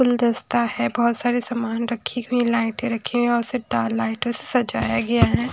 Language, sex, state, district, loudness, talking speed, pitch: Hindi, female, Haryana, Charkhi Dadri, -22 LUFS, 175 wpm, 235 Hz